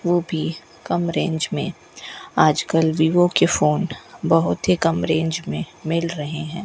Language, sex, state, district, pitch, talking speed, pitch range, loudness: Hindi, female, Rajasthan, Bikaner, 165 Hz, 160 wpm, 160-175 Hz, -21 LUFS